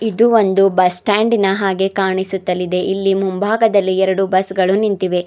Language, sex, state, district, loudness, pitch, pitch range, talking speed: Kannada, female, Karnataka, Bidar, -15 LUFS, 195 Hz, 185-205 Hz, 135 wpm